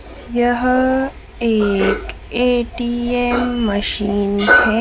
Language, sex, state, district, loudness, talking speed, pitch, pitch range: Hindi, female, Madhya Pradesh, Dhar, -17 LUFS, 60 wpm, 240 Hz, 215-245 Hz